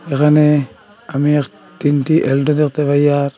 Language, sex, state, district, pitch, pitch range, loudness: Bengali, male, Assam, Hailakandi, 145 Hz, 140-150 Hz, -15 LUFS